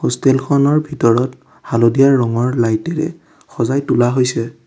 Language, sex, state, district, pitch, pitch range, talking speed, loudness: Assamese, male, Assam, Kamrup Metropolitan, 130 Hz, 115-145 Hz, 130 wpm, -15 LUFS